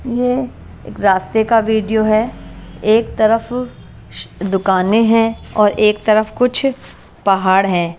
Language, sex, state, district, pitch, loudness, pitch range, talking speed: Hindi, female, Himachal Pradesh, Shimla, 220 Hz, -15 LUFS, 195-230 Hz, 130 wpm